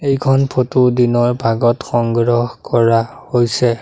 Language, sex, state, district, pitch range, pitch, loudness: Assamese, male, Assam, Sonitpur, 120-130 Hz, 120 Hz, -15 LUFS